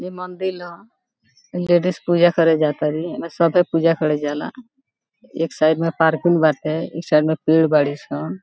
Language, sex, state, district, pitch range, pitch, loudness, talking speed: Bhojpuri, female, Bihar, Gopalganj, 155-180 Hz, 165 Hz, -19 LUFS, 170 wpm